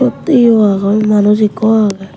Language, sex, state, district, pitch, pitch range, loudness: Chakma, female, Tripura, West Tripura, 215 Hz, 205-220 Hz, -11 LUFS